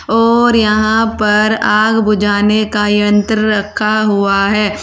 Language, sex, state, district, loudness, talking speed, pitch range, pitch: Hindi, female, Uttar Pradesh, Saharanpur, -12 LUFS, 125 wpm, 210-220 Hz, 215 Hz